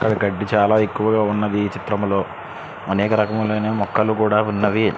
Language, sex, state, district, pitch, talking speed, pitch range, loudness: Telugu, male, Andhra Pradesh, Srikakulam, 105 Hz, 155 wpm, 100-110 Hz, -19 LUFS